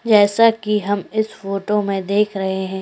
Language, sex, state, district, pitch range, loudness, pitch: Hindi, female, Goa, North and South Goa, 195-215 Hz, -18 LUFS, 205 Hz